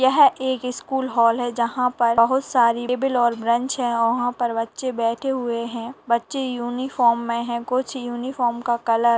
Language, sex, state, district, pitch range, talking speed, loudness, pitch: Hindi, female, Bihar, Araria, 235-255 Hz, 190 wpm, -22 LUFS, 240 Hz